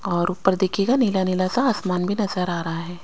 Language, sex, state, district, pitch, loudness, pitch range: Hindi, female, Chandigarh, Chandigarh, 185 Hz, -22 LUFS, 175-200 Hz